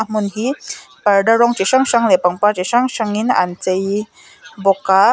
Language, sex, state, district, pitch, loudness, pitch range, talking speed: Mizo, female, Mizoram, Aizawl, 210 Hz, -16 LUFS, 195-235 Hz, 210 wpm